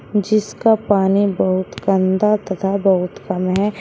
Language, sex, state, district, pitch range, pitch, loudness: Hindi, male, Uttar Pradesh, Shamli, 190-210 Hz, 195 Hz, -17 LUFS